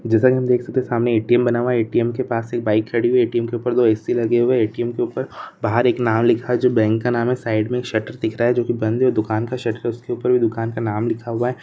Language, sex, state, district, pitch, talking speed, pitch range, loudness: Hindi, male, Jharkhand, Sahebganj, 120 Hz, 315 wpm, 115-125 Hz, -19 LUFS